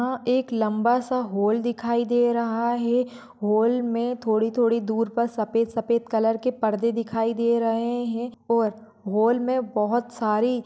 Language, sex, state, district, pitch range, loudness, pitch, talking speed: Hindi, female, Maharashtra, Sindhudurg, 225-240 Hz, -24 LUFS, 235 Hz, 155 wpm